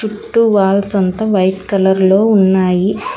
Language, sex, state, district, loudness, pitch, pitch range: Telugu, female, Telangana, Hyderabad, -13 LUFS, 195 Hz, 190-215 Hz